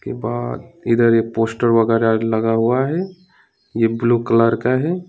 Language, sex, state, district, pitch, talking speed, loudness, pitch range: Hindi, male, West Bengal, Alipurduar, 115 Hz, 155 wpm, -18 LUFS, 115-125 Hz